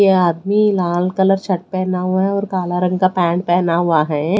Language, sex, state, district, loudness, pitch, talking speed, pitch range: Hindi, female, Odisha, Khordha, -17 LUFS, 185 Hz, 220 wpm, 175-190 Hz